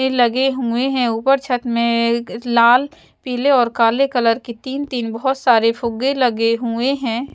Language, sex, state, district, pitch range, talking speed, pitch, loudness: Hindi, female, Chhattisgarh, Raipur, 235-265 Hz, 165 wpm, 245 Hz, -17 LUFS